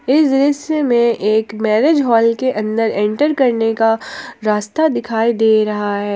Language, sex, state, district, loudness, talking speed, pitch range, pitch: Hindi, female, Jharkhand, Palamu, -15 LUFS, 155 wpm, 215-270 Hz, 225 Hz